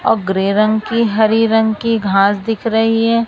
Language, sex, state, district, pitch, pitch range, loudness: Hindi, male, Maharashtra, Mumbai Suburban, 225 Hz, 210-225 Hz, -14 LUFS